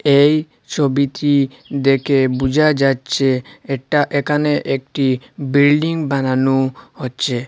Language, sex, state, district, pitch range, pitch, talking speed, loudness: Bengali, male, Assam, Hailakandi, 135-145 Hz, 140 Hz, 90 wpm, -17 LUFS